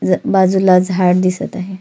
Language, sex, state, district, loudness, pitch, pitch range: Marathi, female, Maharashtra, Solapur, -14 LUFS, 185 Hz, 185-190 Hz